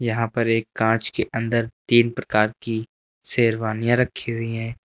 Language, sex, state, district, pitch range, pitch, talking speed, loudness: Hindi, male, Uttar Pradesh, Lucknow, 110-120 Hz, 115 Hz, 160 wpm, -22 LUFS